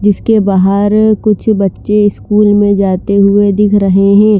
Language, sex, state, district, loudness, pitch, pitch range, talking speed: Hindi, female, Chandigarh, Chandigarh, -10 LUFS, 205 Hz, 200-210 Hz, 165 wpm